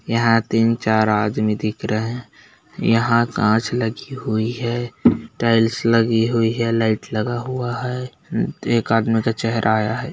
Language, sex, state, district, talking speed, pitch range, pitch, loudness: Hindi, male, Bihar, Bhagalpur, 150 wpm, 110-120 Hz, 115 Hz, -19 LUFS